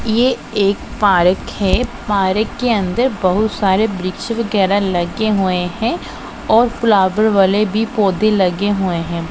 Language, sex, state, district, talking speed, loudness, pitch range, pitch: Hindi, female, Punjab, Pathankot, 140 wpm, -16 LUFS, 190-220 Hz, 205 Hz